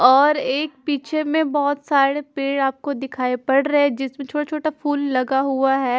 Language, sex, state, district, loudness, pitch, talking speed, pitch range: Hindi, female, Punjab, Fazilka, -20 LUFS, 280 Hz, 190 wpm, 270-295 Hz